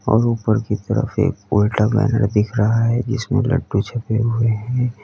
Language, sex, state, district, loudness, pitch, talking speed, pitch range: Hindi, male, Uttar Pradesh, Lalitpur, -19 LUFS, 115 Hz, 180 wpm, 105-125 Hz